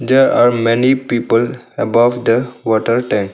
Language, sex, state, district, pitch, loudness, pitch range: English, male, Arunachal Pradesh, Longding, 120 Hz, -14 LUFS, 115-125 Hz